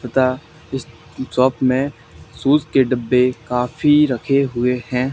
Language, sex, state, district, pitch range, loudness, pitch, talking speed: Hindi, male, Haryana, Charkhi Dadri, 125-140 Hz, -18 LUFS, 130 Hz, 130 wpm